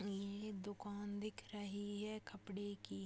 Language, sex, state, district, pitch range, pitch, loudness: Hindi, female, Chhattisgarh, Bilaspur, 200-205 Hz, 205 Hz, -48 LUFS